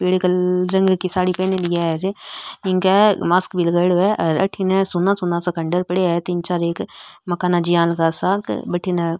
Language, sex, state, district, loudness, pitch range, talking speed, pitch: Marwari, female, Rajasthan, Nagaur, -19 LUFS, 175-185 Hz, 190 wpm, 180 Hz